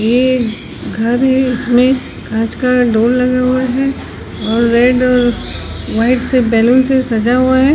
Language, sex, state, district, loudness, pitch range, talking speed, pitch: Hindi, female, Odisha, Sambalpur, -13 LUFS, 235-255 Hz, 155 wpm, 250 Hz